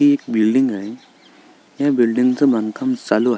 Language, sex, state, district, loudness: Marathi, male, Maharashtra, Sindhudurg, -18 LUFS